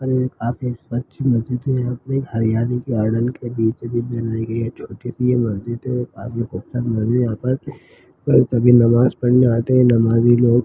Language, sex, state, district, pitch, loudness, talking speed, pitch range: Hindi, male, Chhattisgarh, Kabirdham, 120 Hz, -19 LUFS, 205 wpm, 115-125 Hz